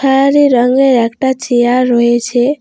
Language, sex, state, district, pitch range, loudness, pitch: Bengali, female, West Bengal, Alipurduar, 240-270 Hz, -11 LUFS, 255 Hz